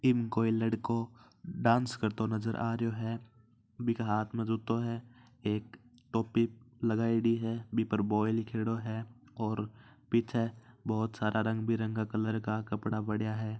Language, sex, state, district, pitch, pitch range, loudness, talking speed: Marwari, male, Rajasthan, Churu, 115 Hz, 110-115 Hz, -33 LUFS, 150 wpm